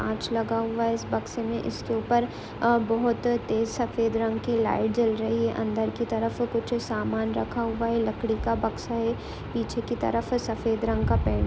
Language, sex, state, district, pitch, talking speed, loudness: Hindi, female, Uttar Pradesh, Hamirpur, 225 Hz, 205 wpm, -27 LUFS